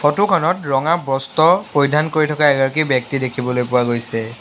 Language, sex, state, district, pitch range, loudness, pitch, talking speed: Assamese, male, Assam, Sonitpur, 125-155 Hz, -17 LUFS, 140 Hz, 150 wpm